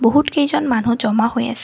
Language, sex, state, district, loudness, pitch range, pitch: Assamese, female, Assam, Kamrup Metropolitan, -17 LUFS, 230-275 Hz, 235 Hz